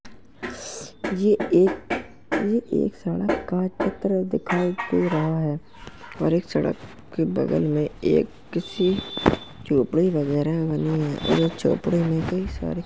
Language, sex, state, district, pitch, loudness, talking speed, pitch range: Hindi, male, Uttar Pradesh, Jalaun, 170 Hz, -24 LUFS, 140 wpm, 155-185 Hz